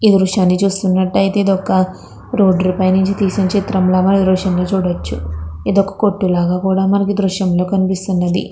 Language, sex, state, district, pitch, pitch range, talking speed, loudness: Telugu, female, Andhra Pradesh, Krishna, 190 Hz, 185-195 Hz, 100 wpm, -15 LUFS